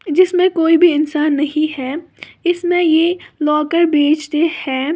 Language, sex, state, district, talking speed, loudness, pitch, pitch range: Hindi, female, Uttar Pradesh, Lalitpur, 135 wpm, -15 LUFS, 320 Hz, 300-345 Hz